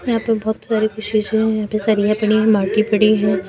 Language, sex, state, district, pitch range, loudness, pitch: Hindi, female, Uttar Pradesh, Lucknow, 215-220 Hz, -17 LUFS, 215 Hz